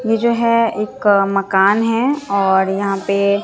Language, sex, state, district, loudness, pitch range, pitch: Hindi, female, Bihar, Katihar, -16 LUFS, 195-230 Hz, 200 Hz